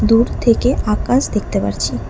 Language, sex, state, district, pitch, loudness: Bengali, female, West Bengal, Alipurduar, 210 Hz, -16 LUFS